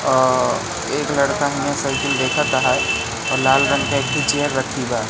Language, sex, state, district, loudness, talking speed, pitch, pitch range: Hindi, male, Madhya Pradesh, Katni, -18 LUFS, 140 wpm, 130 Hz, 125-140 Hz